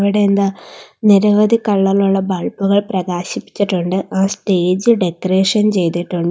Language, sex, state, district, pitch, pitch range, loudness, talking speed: Malayalam, female, Kerala, Kollam, 195 Hz, 185-205 Hz, -15 LUFS, 105 wpm